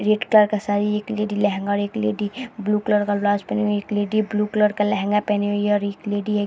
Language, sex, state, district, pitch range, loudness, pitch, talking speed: Hindi, female, Bihar, Vaishali, 205-210 Hz, -21 LUFS, 205 Hz, 250 wpm